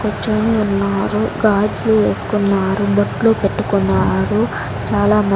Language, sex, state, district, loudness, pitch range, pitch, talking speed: Telugu, female, Andhra Pradesh, Sri Satya Sai, -16 LUFS, 190-215 Hz, 205 Hz, 90 wpm